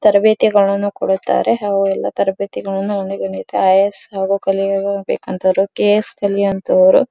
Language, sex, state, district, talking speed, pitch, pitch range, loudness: Kannada, female, Karnataka, Dharwad, 95 wpm, 200 Hz, 195-205 Hz, -16 LUFS